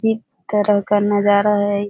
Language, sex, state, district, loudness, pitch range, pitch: Hindi, female, Bihar, Jahanabad, -17 LUFS, 205-210 Hz, 205 Hz